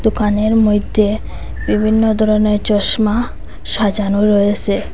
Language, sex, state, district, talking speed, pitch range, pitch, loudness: Bengali, female, Assam, Hailakandi, 85 wpm, 205-220 Hz, 210 Hz, -15 LUFS